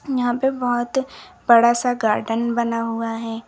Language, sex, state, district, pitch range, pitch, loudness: Hindi, female, Uttar Pradesh, Lalitpur, 230-245 Hz, 235 Hz, -20 LUFS